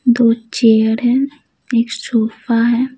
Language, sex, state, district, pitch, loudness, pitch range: Hindi, female, Bihar, Patna, 235 Hz, -15 LUFS, 230-250 Hz